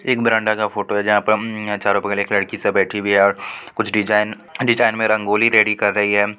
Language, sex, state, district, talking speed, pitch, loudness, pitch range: Hindi, female, Bihar, Supaul, 235 wpm, 105 Hz, -17 LUFS, 105-110 Hz